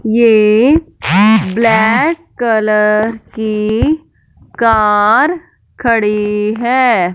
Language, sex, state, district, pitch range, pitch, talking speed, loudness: Hindi, female, Punjab, Fazilka, 210-245 Hz, 220 Hz, 60 wpm, -12 LUFS